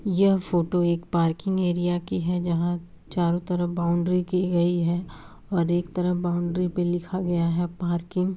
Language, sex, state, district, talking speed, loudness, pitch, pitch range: Hindi, female, Bihar, Gaya, 165 wpm, -25 LUFS, 175 Hz, 170-180 Hz